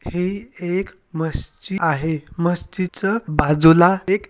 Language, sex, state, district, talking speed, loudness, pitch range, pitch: Marathi, male, Maharashtra, Sindhudurg, 100 wpm, -20 LUFS, 160-190 Hz, 175 Hz